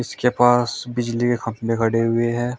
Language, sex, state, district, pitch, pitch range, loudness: Hindi, male, Uttar Pradesh, Shamli, 120 Hz, 115-120 Hz, -20 LUFS